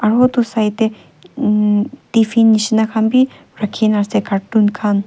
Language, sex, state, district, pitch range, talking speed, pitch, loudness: Nagamese, female, Nagaland, Kohima, 210-225 Hz, 165 wpm, 215 Hz, -15 LUFS